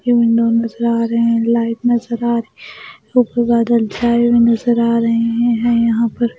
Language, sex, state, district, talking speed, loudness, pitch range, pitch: Hindi, female, Maharashtra, Mumbai Suburban, 185 wpm, -15 LUFS, 230-235 Hz, 235 Hz